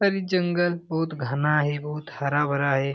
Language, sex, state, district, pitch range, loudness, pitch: Hindi, male, Bihar, Jamui, 140-175 Hz, -25 LUFS, 150 Hz